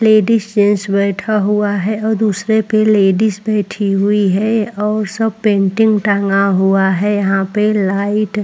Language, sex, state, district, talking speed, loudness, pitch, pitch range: Hindi, female, Maharashtra, Chandrapur, 155 wpm, -14 LUFS, 210 Hz, 200-215 Hz